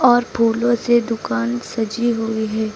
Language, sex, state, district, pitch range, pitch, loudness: Hindi, female, Uttar Pradesh, Lucknow, 220-240 Hz, 230 Hz, -19 LUFS